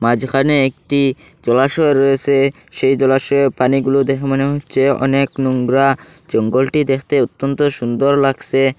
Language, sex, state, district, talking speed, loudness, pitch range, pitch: Bengali, male, Assam, Hailakandi, 115 wpm, -15 LUFS, 135-140 Hz, 135 Hz